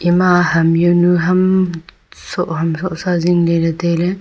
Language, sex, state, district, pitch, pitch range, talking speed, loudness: Wancho, female, Arunachal Pradesh, Longding, 175 Hz, 170-180 Hz, 155 wpm, -15 LUFS